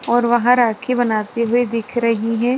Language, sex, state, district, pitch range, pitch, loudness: Hindi, female, Chhattisgarh, Rajnandgaon, 230-245 Hz, 235 Hz, -17 LUFS